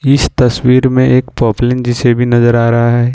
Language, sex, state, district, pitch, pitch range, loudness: Hindi, male, Jharkhand, Ranchi, 125 Hz, 120-125 Hz, -11 LUFS